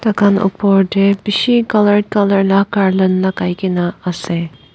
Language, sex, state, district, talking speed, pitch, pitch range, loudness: Nagamese, female, Nagaland, Dimapur, 115 wpm, 195 Hz, 185-205 Hz, -14 LUFS